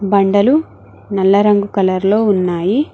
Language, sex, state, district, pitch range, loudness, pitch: Telugu, female, Telangana, Mahabubabad, 195-210 Hz, -14 LUFS, 200 Hz